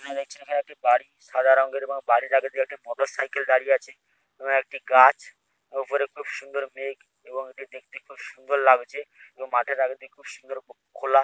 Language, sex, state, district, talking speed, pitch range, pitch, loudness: Bengali, male, West Bengal, Paschim Medinipur, 175 wpm, 130-140 Hz, 135 Hz, -24 LUFS